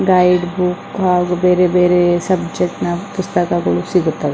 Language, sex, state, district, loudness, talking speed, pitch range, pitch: Kannada, female, Karnataka, Dakshina Kannada, -15 LUFS, 150 wpm, 175-180 Hz, 180 Hz